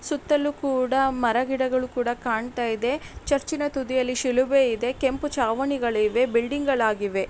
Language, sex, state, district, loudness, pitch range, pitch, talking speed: Kannada, female, Karnataka, Raichur, -24 LUFS, 240-275 Hz, 255 Hz, 140 wpm